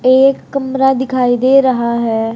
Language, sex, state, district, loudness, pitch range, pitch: Hindi, male, Haryana, Charkhi Dadri, -13 LUFS, 235-265 Hz, 255 Hz